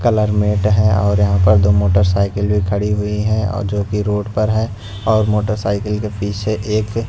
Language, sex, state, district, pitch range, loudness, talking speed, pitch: Hindi, male, Punjab, Pathankot, 100-105 Hz, -16 LUFS, 195 wpm, 105 Hz